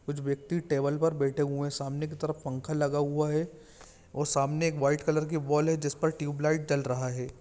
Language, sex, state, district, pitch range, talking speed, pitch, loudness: Hindi, male, Jharkhand, Jamtara, 140-155 Hz, 220 wpm, 145 Hz, -30 LUFS